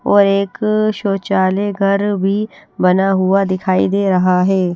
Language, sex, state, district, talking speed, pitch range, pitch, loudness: Hindi, female, Haryana, Rohtak, 140 wpm, 185-200 Hz, 195 Hz, -15 LUFS